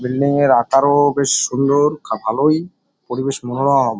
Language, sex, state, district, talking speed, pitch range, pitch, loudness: Bengali, male, West Bengal, North 24 Parganas, 150 wpm, 125-145 Hz, 135 Hz, -16 LUFS